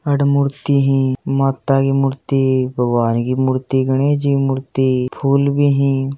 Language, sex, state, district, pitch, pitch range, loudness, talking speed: Hindi, male, Rajasthan, Churu, 135 Hz, 130-140 Hz, -16 LUFS, 155 wpm